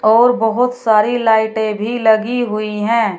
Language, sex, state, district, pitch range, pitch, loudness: Hindi, female, Uttar Pradesh, Shamli, 215-235 Hz, 220 Hz, -15 LUFS